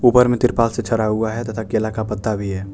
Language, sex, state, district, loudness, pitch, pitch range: Hindi, male, Jharkhand, Deoghar, -19 LUFS, 110 Hz, 110-120 Hz